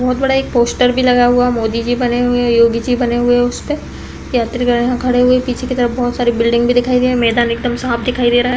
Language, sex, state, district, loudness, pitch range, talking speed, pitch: Hindi, female, Uttar Pradesh, Deoria, -14 LUFS, 240-250 Hz, 275 wpm, 245 Hz